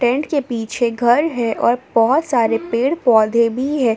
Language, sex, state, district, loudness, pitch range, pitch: Hindi, female, Jharkhand, Palamu, -17 LUFS, 230-270 Hz, 240 Hz